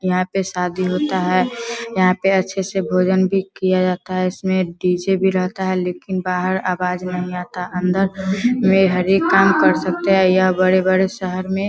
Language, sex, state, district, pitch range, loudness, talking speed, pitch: Hindi, female, Bihar, Vaishali, 180-190 Hz, -18 LUFS, 185 wpm, 185 Hz